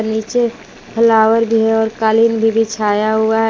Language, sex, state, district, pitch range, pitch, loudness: Hindi, female, Jharkhand, Palamu, 220-225 Hz, 225 Hz, -14 LUFS